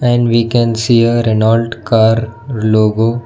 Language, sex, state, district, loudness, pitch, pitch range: English, male, Karnataka, Bangalore, -13 LUFS, 115 Hz, 110-120 Hz